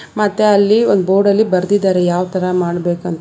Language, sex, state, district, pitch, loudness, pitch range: Kannada, female, Karnataka, Bangalore, 190 Hz, -14 LUFS, 180-205 Hz